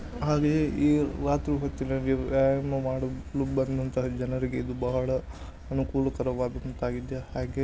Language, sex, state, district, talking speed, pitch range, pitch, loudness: Kannada, male, Karnataka, Dharwad, 70 wpm, 130-135 Hz, 135 Hz, -28 LUFS